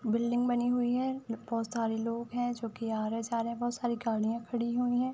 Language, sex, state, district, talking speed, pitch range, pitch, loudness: Hindi, female, Uttar Pradesh, Budaun, 255 wpm, 230-245 Hz, 235 Hz, -32 LUFS